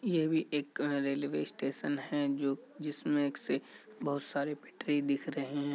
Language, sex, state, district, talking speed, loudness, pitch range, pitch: Hindi, male, Bihar, Kishanganj, 190 wpm, -35 LUFS, 140-145 Hz, 145 Hz